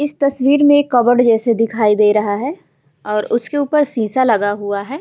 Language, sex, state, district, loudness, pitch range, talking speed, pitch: Hindi, female, Bihar, Vaishali, -15 LUFS, 210-285 Hz, 205 wpm, 240 Hz